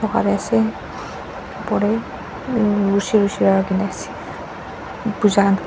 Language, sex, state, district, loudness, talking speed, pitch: Nagamese, female, Nagaland, Dimapur, -19 LUFS, 75 wpm, 200 Hz